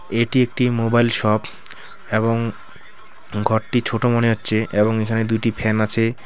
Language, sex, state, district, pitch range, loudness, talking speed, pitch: Bengali, male, West Bengal, Alipurduar, 110-115 Hz, -20 LUFS, 135 wpm, 115 Hz